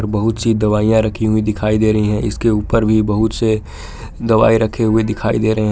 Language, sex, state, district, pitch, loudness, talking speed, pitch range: Hindi, male, Jharkhand, Palamu, 110 Hz, -15 LUFS, 220 wpm, 105-110 Hz